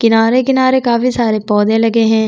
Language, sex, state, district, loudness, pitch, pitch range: Hindi, female, Chhattisgarh, Sukma, -12 LUFS, 230 Hz, 220-250 Hz